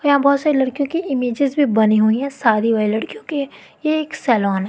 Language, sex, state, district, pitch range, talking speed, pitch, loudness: Hindi, female, Madhya Pradesh, Katni, 225-295 Hz, 230 wpm, 275 Hz, -18 LUFS